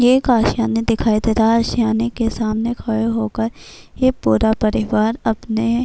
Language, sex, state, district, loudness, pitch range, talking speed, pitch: Urdu, female, Bihar, Kishanganj, -18 LUFS, 220-235 Hz, 125 wpm, 225 Hz